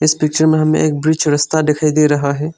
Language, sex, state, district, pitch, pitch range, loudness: Hindi, male, Arunachal Pradesh, Lower Dibang Valley, 155 Hz, 150-155 Hz, -14 LUFS